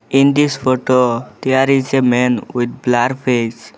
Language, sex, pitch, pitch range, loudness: English, male, 125 Hz, 120-135 Hz, -15 LUFS